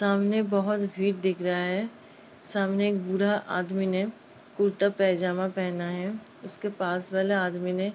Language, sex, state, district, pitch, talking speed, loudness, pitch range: Hindi, female, Uttar Pradesh, Ghazipur, 195 Hz, 160 wpm, -28 LUFS, 185-200 Hz